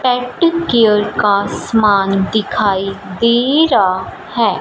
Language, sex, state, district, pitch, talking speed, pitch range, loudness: Hindi, female, Punjab, Fazilka, 220 Hz, 105 wpm, 200-250 Hz, -14 LUFS